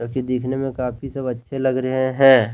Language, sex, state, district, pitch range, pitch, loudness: Hindi, male, Jharkhand, Deoghar, 125-135 Hz, 130 Hz, -20 LUFS